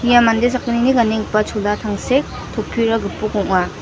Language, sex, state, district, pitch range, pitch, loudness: Garo, female, Meghalaya, West Garo Hills, 210-240 Hz, 225 Hz, -17 LUFS